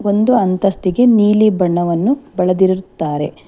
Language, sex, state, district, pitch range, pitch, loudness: Kannada, female, Karnataka, Bangalore, 180-215 Hz, 190 Hz, -14 LUFS